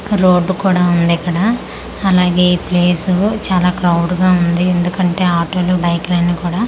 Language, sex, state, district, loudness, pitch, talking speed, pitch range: Telugu, female, Andhra Pradesh, Manyam, -14 LUFS, 180 Hz, 145 wpm, 175-185 Hz